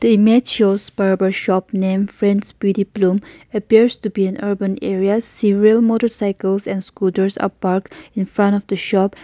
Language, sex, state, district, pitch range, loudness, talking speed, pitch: English, female, Nagaland, Kohima, 195-215 Hz, -17 LUFS, 170 wpm, 200 Hz